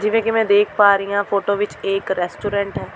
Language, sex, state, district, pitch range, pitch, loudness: Punjabi, female, Delhi, New Delhi, 195-205 Hz, 200 Hz, -18 LUFS